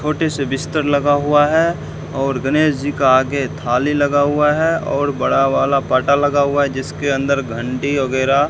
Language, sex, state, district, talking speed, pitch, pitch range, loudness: Hindi, male, Rajasthan, Bikaner, 190 wpm, 145 Hz, 135-145 Hz, -16 LUFS